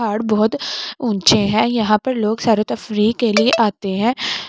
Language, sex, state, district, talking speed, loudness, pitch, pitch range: Hindi, female, Delhi, New Delhi, 175 wpm, -17 LUFS, 220 Hz, 215-235 Hz